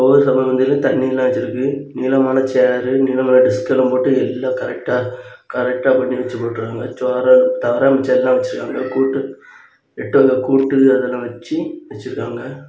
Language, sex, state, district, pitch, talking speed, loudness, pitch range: Tamil, male, Tamil Nadu, Kanyakumari, 130 Hz, 135 wpm, -16 LUFS, 130-135 Hz